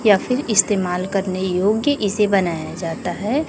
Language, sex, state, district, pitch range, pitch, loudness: Hindi, female, Chhattisgarh, Raipur, 185-215 Hz, 200 Hz, -19 LUFS